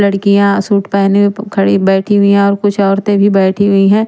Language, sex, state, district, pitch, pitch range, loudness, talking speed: Hindi, female, Chandigarh, Chandigarh, 200 Hz, 195-205 Hz, -11 LUFS, 205 wpm